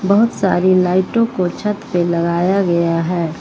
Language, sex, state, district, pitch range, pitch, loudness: Hindi, female, Uttar Pradesh, Lucknow, 170-200 Hz, 185 Hz, -16 LUFS